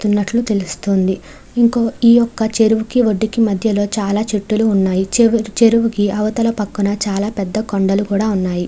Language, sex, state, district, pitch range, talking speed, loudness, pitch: Telugu, female, Andhra Pradesh, Krishna, 200-225 Hz, 150 wpm, -16 LUFS, 210 Hz